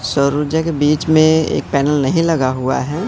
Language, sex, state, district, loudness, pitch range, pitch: Hindi, male, Madhya Pradesh, Katni, -15 LUFS, 140-160 Hz, 150 Hz